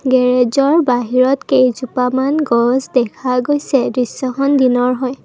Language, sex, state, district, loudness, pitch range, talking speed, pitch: Assamese, female, Assam, Kamrup Metropolitan, -15 LUFS, 250-270 Hz, 105 wpm, 255 Hz